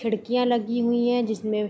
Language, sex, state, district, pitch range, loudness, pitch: Hindi, female, Bihar, Vaishali, 220-240 Hz, -24 LUFS, 235 Hz